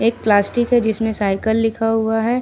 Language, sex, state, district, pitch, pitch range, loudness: Hindi, female, Jharkhand, Ranchi, 225 Hz, 220-230 Hz, -18 LUFS